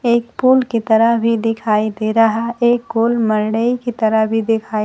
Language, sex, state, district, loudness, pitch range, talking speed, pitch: Hindi, female, Bihar, Kaimur, -16 LUFS, 220-235 Hz, 160 wpm, 225 Hz